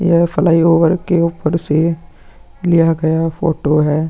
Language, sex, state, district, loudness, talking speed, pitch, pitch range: Hindi, male, Bihar, Vaishali, -14 LUFS, 130 wpm, 165 Hz, 155-170 Hz